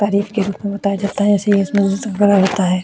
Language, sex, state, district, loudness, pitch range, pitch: Hindi, female, Uttar Pradesh, Jalaun, -16 LUFS, 195-205 Hz, 200 Hz